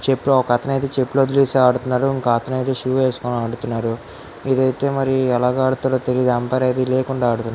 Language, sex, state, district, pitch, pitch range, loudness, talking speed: Telugu, female, Andhra Pradesh, Guntur, 130 Hz, 120-130 Hz, -19 LUFS, 175 wpm